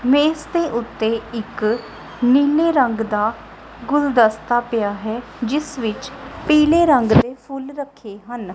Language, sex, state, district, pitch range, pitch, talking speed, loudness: Punjabi, female, Punjab, Kapurthala, 225-285 Hz, 240 Hz, 125 wpm, -18 LUFS